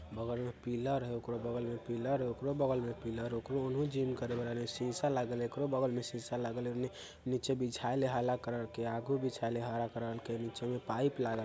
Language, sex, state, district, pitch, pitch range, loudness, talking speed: Bajjika, male, Bihar, Vaishali, 120 Hz, 115-130 Hz, -37 LUFS, 230 wpm